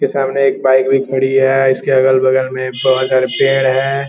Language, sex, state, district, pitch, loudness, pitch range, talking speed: Hindi, male, Bihar, Gopalganj, 130 Hz, -13 LUFS, 130-135 Hz, 220 wpm